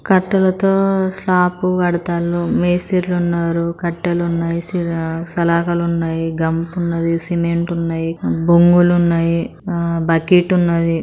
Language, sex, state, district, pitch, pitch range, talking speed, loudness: Telugu, female, Telangana, Karimnagar, 170 Hz, 170-180 Hz, 100 wpm, -17 LUFS